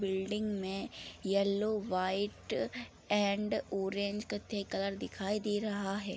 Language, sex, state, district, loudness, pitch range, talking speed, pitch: Hindi, female, Bihar, Araria, -35 LUFS, 195-210 Hz, 115 wpm, 200 Hz